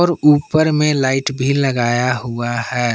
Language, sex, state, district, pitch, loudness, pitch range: Hindi, male, Jharkhand, Palamu, 135 Hz, -16 LUFS, 120-150 Hz